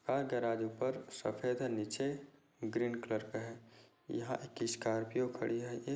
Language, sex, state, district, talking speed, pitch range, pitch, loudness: Hindi, male, Chhattisgarh, Korba, 160 wpm, 115-130 Hz, 120 Hz, -39 LUFS